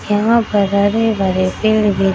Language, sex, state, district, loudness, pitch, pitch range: Hindi, female, Bihar, Samastipur, -15 LUFS, 205 Hz, 195-215 Hz